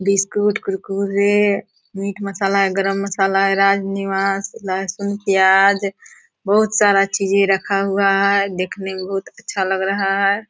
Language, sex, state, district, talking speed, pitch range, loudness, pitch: Hindi, female, Bihar, Purnia, 125 wpm, 195-200 Hz, -18 LUFS, 195 Hz